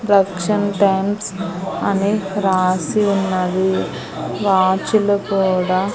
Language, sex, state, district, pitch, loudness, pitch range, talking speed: Telugu, female, Andhra Pradesh, Annamaya, 195 Hz, -18 LUFS, 185-200 Hz, 70 wpm